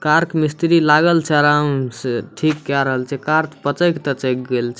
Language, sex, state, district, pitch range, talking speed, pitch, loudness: Maithili, male, Bihar, Samastipur, 130-155 Hz, 185 wpm, 150 Hz, -17 LUFS